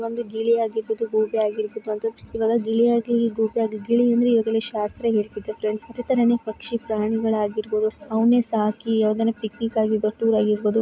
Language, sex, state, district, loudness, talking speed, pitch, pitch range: Kannada, female, Karnataka, Bijapur, -22 LUFS, 145 wpm, 220 Hz, 215-230 Hz